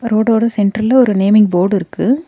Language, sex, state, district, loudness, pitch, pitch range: Tamil, female, Tamil Nadu, Nilgiris, -13 LUFS, 215 Hz, 200-235 Hz